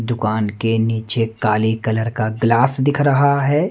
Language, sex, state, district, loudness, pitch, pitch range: Hindi, male, Madhya Pradesh, Umaria, -18 LUFS, 115 Hz, 110-135 Hz